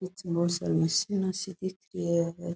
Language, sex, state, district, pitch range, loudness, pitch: Rajasthani, female, Rajasthan, Nagaur, 170-185 Hz, -29 LUFS, 175 Hz